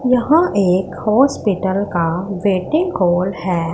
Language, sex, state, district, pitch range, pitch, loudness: Hindi, female, Punjab, Pathankot, 180-250 Hz, 195 Hz, -16 LUFS